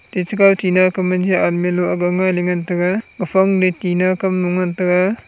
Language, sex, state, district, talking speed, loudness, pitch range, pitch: Wancho, male, Arunachal Pradesh, Longding, 205 wpm, -17 LUFS, 180-185 Hz, 185 Hz